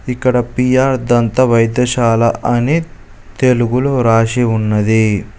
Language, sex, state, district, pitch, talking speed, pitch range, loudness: Telugu, male, Telangana, Mahabubabad, 120 Hz, 90 wpm, 115-125 Hz, -13 LUFS